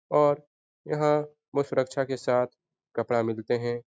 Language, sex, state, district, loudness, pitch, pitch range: Hindi, male, Bihar, Jahanabad, -28 LUFS, 130 Hz, 120-150 Hz